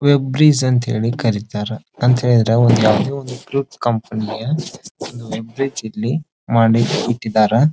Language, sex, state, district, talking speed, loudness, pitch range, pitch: Kannada, male, Karnataka, Dharwad, 100 wpm, -17 LUFS, 110-135 Hz, 120 Hz